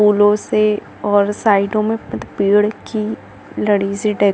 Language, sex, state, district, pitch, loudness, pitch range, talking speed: Hindi, female, Chhattisgarh, Bilaspur, 210 Hz, -17 LUFS, 205-215 Hz, 125 wpm